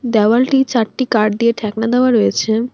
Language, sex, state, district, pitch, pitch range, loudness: Bengali, female, West Bengal, Alipurduar, 230 Hz, 220-250 Hz, -15 LUFS